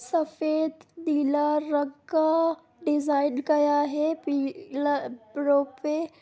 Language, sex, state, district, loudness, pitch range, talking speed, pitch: Hindi, female, Bihar, Sitamarhi, -26 LUFS, 285-315 Hz, 75 wpm, 295 Hz